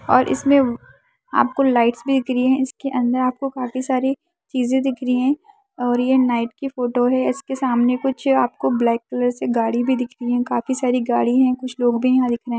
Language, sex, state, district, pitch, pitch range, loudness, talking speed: Hindi, female, Bihar, Madhepura, 255 Hz, 245-265 Hz, -20 LUFS, 225 wpm